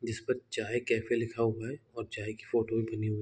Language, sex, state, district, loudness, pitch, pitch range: Hindi, male, Bihar, East Champaran, -33 LUFS, 115 Hz, 110-120 Hz